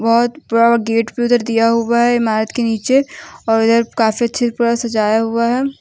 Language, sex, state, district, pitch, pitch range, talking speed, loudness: Hindi, female, Jharkhand, Deoghar, 235 Hz, 225-240 Hz, 205 wpm, -15 LUFS